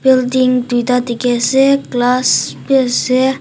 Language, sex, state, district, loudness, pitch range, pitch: Nagamese, female, Nagaland, Dimapur, -13 LUFS, 245-265 Hz, 255 Hz